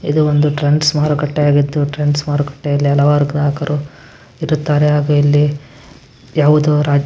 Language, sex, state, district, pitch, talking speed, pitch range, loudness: Kannada, male, Karnataka, Bijapur, 145 Hz, 120 wpm, 145-150 Hz, -14 LUFS